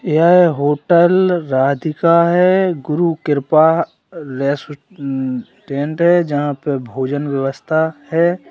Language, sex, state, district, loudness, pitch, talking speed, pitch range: Hindi, male, Uttar Pradesh, Lalitpur, -16 LUFS, 155 Hz, 90 wpm, 140-170 Hz